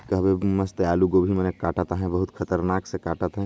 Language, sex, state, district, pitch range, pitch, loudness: Chhattisgarhi, male, Chhattisgarh, Jashpur, 90-95 Hz, 95 Hz, -24 LUFS